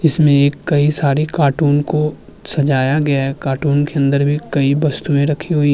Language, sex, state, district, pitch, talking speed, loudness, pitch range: Hindi, male, Uttar Pradesh, Muzaffarnagar, 145 Hz, 190 wpm, -15 LUFS, 140-150 Hz